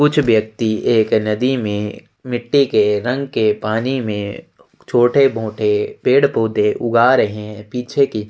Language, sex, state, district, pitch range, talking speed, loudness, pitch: Hindi, male, Chhattisgarh, Sukma, 105-125 Hz, 150 wpm, -17 LUFS, 110 Hz